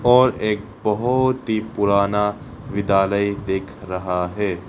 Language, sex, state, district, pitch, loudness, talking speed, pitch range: Hindi, male, Arunachal Pradesh, Lower Dibang Valley, 105 Hz, -21 LUFS, 115 wpm, 95-115 Hz